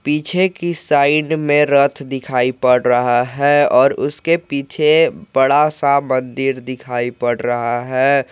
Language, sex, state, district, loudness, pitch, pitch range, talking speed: Hindi, male, Jharkhand, Garhwa, -16 LUFS, 140 Hz, 125-150 Hz, 135 wpm